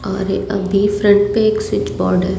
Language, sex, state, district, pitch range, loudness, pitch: Hindi, female, Delhi, New Delhi, 195-205 Hz, -16 LUFS, 200 Hz